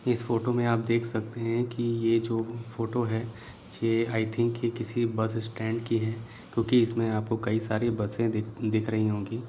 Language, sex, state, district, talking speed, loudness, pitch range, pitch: Hindi, male, Bihar, Saran, 185 wpm, -28 LUFS, 110-115 Hz, 115 Hz